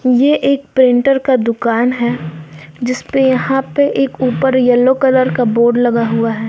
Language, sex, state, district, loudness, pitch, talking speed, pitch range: Hindi, female, Bihar, West Champaran, -13 LUFS, 250 Hz, 165 wpm, 235-265 Hz